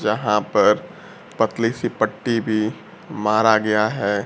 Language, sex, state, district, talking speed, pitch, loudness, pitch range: Hindi, male, Bihar, Kaimur, 125 wpm, 110 Hz, -20 LUFS, 105-115 Hz